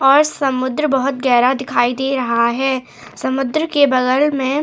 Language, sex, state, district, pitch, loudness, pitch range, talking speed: Hindi, female, Goa, North and South Goa, 265 Hz, -16 LUFS, 255-280 Hz, 170 wpm